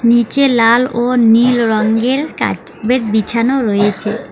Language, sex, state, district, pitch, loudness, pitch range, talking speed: Bengali, female, West Bengal, Alipurduar, 235 Hz, -13 LUFS, 220-250 Hz, 85 wpm